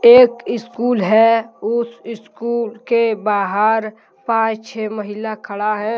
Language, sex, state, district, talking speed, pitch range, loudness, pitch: Hindi, male, Jharkhand, Deoghar, 120 wpm, 215-235 Hz, -17 LUFS, 225 Hz